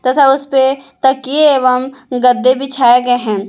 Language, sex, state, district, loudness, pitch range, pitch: Hindi, female, Jharkhand, Palamu, -12 LUFS, 250-270 Hz, 260 Hz